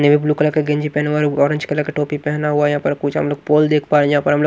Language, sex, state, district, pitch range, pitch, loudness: Hindi, male, Maharashtra, Washim, 145-150 Hz, 150 Hz, -17 LUFS